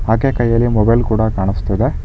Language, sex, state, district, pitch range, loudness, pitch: Kannada, male, Karnataka, Bangalore, 105-120 Hz, -15 LUFS, 110 Hz